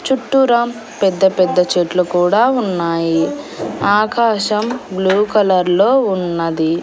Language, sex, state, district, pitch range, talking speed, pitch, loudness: Telugu, female, Andhra Pradesh, Annamaya, 175-230 Hz, 90 wpm, 190 Hz, -15 LUFS